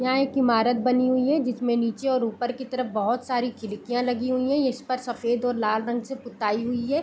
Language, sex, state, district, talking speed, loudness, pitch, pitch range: Hindi, female, Bihar, Purnia, 240 wpm, -25 LUFS, 245 Hz, 235-255 Hz